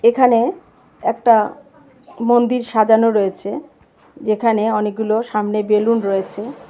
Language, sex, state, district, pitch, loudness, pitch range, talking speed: Bengali, female, Tripura, West Tripura, 225 Hz, -17 LUFS, 215-240 Hz, 90 wpm